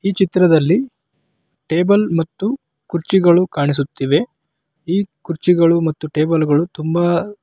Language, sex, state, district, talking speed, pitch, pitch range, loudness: Kannada, male, Karnataka, Raichur, 105 wpm, 170 Hz, 155-185 Hz, -16 LUFS